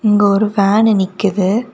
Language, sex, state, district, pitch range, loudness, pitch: Tamil, female, Tamil Nadu, Kanyakumari, 200-215 Hz, -14 LUFS, 205 Hz